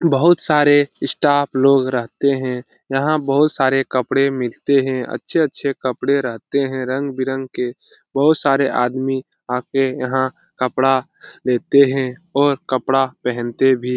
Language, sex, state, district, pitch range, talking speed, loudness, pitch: Hindi, male, Bihar, Lakhisarai, 130-140 Hz, 130 wpm, -18 LUFS, 135 Hz